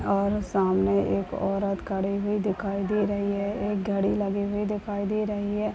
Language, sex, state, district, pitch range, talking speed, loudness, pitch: Hindi, male, Bihar, Muzaffarpur, 195-205 Hz, 190 wpm, -27 LUFS, 200 Hz